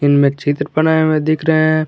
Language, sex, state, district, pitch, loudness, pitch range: Hindi, male, Jharkhand, Garhwa, 155 Hz, -15 LUFS, 145-155 Hz